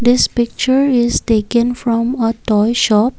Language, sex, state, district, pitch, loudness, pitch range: English, female, Assam, Kamrup Metropolitan, 235 Hz, -15 LUFS, 225-245 Hz